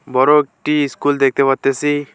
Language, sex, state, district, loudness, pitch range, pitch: Bengali, male, West Bengal, Alipurduar, -15 LUFS, 135-145 Hz, 140 Hz